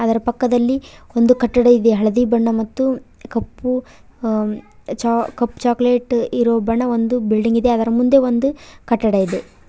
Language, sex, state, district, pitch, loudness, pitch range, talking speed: Kannada, female, Karnataka, Koppal, 240 Hz, -17 LUFS, 230-245 Hz, 130 wpm